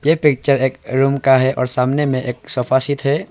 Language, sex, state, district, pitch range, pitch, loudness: Hindi, male, Arunachal Pradesh, Longding, 130-140 Hz, 135 Hz, -16 LUFS